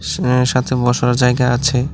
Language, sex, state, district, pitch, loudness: Bengali, male, Tripura, West Tripura, 125 Hz, -15 LUFS